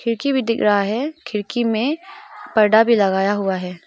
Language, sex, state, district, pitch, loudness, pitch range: Hindi, female, Arunachal Pradesh, Papum Pare, 225 Hz, -18 LUFS, 205-265 Hz